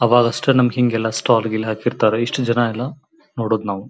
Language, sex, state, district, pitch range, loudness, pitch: Kannada, male, Karnataka, Belgaum, 110-125 Hz, -18 LUFS, 120 Hz